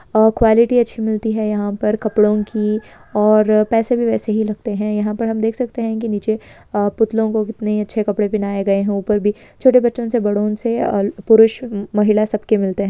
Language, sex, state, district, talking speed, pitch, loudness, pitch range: Hindi, female, West Bengal, Purulia, 215 wpm, 215 Hz, -17 LUFS, 210-225 Hz